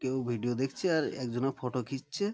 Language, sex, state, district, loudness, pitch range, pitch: Bengali, male, West Bengal, Malda, -33 LUFS, 125-140 Hz, 130 Hz